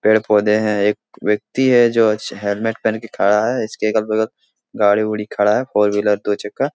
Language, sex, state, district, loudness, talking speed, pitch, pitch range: Hindi, male, Bihar, Jahanabad, -17 LUFS, 215 wpm, 110 Hz, 105-110 Hz